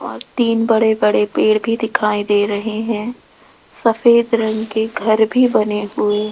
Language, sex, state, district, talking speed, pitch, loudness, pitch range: Hindi, female, Rajasthan, Jaipur, 170 wpm, 220 Hz, -16 LUFS, 210-230 Hz